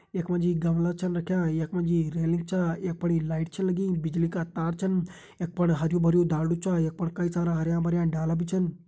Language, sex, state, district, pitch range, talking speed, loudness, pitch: Hindi, male, Uttarakhand, Tehri Garhwal, 165-180 Hz, 225 wpm, -27 LUFS, 170 Hz